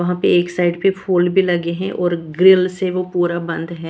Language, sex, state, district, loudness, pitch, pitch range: Hindi, female, Maharashtra, Washim, -17 LUFS, 175 Hz, 170-185 Hz